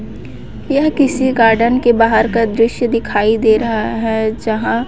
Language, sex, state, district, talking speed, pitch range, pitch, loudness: Hindi, female, Chhattisgarh, Raipur, 145 wpm, 220-235 Hz, 225 Hz, -14 LUFS